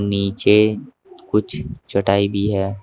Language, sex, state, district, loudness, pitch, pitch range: Hindi, male, Uttar Pradesh, Saharanpur, -19 LUFS, 100 Hz, 100-105 Hz